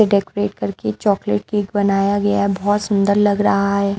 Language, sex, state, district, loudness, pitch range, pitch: Hindi, female, Delhi, New Delhi, -18 LUFS, 195-205 Hz, 200 Hz